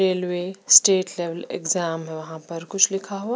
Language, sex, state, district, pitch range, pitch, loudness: Hindi, female, Bihar, Patna, 165-195 Hz, 180 Hz, -20 LUFS